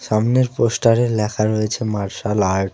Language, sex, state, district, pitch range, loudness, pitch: Bengali, male, West Bengal, Alipurduar, 105-115 Hz, -18 LUFS, 110 Hz